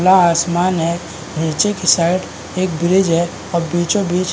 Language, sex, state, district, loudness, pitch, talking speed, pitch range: Hindi, male, Uttarakhand, Uttarkashi, -16 LUFS, 175 Hz, 180 wpm, 170-185 Hz